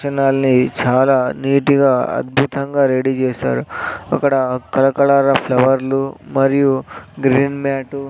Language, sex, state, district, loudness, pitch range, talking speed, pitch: Telugu, male, Andhra Pradesh, Sri Satya Sai, -16 LUFS, 130-140 Hz, 90 wpm, 135 Hz